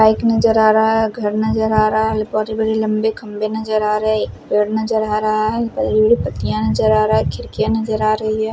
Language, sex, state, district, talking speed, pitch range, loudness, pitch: Hindi, male, Punjab, Fazilka, 245 wpm, 210-220 Hz, -17 LUFS, 215 Hz